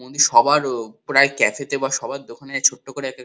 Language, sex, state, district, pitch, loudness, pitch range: Bengali, male, West Bengal, Kolkata, 135 Hz, -18 LUFS, 125-140 Hz